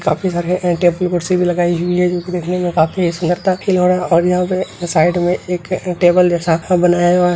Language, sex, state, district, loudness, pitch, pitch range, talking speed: Hindi, male, Bihar, Begusarai, -15 LUFS, 180 Hz, 175-180 Hz, 185 wpm